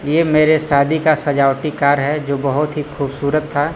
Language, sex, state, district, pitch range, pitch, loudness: Hindi, male, Bihar, Kaimur, 140-155 Hz, 145 Hz, -16 LUFS